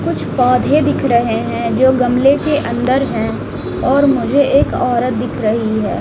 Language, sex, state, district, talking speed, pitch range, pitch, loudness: Hindi, female, Chhattisgarh, Raipur, 170 wpm, 240-280 Hz, 250 Hz, -14 LUFS